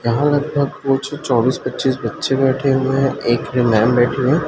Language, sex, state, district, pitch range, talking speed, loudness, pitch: Hindi, male, Chhattisgarh, Raipur, 125-140 Hz, 175 wpm, -17 LUFS, 135 Hz